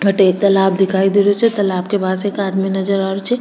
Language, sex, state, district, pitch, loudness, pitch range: Rajasthani, female, Rajasthan, Churu, 195 Hz, -15 LUFS, 190-200 Hz